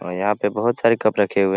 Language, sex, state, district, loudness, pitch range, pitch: Hindi, male, Bihar, Jahanabad, -20 LUFS, 100-115 Hz, 105 Hz